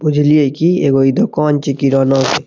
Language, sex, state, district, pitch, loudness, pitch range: Maithili, male, Bihar, Saharsa, 140 Hz, -13 LUFS, 135-150 Hz